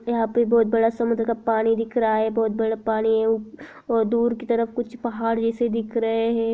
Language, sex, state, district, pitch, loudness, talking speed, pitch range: Hindi, female, Chhattisgarh, Raigarh, 230 Hz, -22 LUFS, 220 wpm, 225-235 Hz